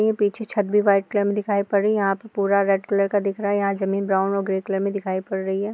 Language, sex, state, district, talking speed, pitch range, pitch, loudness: Hindi, female, Uttar Pradesh, Jyotiba Phule Nagar, 315 wpm, 195-205 Hz, 200 Hz, -22 LUFS